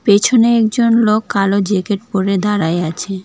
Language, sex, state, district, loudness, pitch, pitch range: Bengali, female, West Bengal, Alipurduar, -14 LUFS, 205 Hz, 195-225 Hz